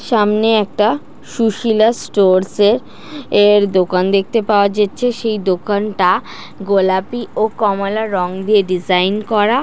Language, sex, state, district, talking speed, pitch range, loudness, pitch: Bengali, female, West Bengal, Jhargram, 120 wpm, 195-220 Hz, -15 LUFS, 210 Hz